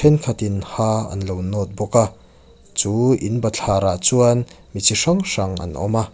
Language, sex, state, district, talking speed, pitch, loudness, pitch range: Mizo, male, Mizoram, Aizawl, 185 wpm, 105 Hz, -19 LUFS, 95-115 Hz